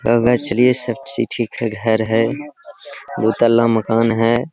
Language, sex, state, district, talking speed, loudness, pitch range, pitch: Hindi, male, Bihar, Gaya, 105 wpm, -15 LUFS, 115-125 Hz, 115 Hz